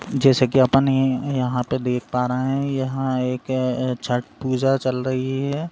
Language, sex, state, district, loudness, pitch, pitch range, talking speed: Hindi, male, Uttar Pradesh, Etah, -21 LUFS, 130 Hz, 125-135 Hz, 180 wpm